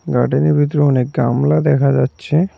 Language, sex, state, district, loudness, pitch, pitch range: Bengali, male, West Bengal, Cooch Behar, -15 LUFS, 145 Hz, 130-155 Hz